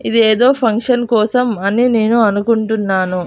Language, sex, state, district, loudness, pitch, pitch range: Telugu, female, Andhra Pradesh, Annamaya, -14 LUFS, 225 Hz, 215-240 Hz